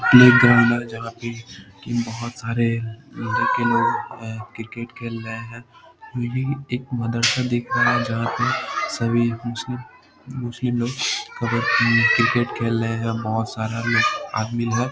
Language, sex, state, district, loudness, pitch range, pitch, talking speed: Hindi, male, Bihar, Samastipur, -21 LUFS, 115-125 Hz, 120 Hz, 145 wpm